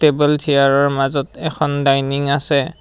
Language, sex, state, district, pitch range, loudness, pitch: Assamese, male, Assam, Kamrup Metropolitan, 140-150 Hz, -16 LUFS, 140 Hz